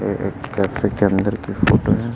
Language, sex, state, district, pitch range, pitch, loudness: Hindi, male, Chhattisgarh, Raipur, 100-110 Hz, 100 Hz, -19 LUFS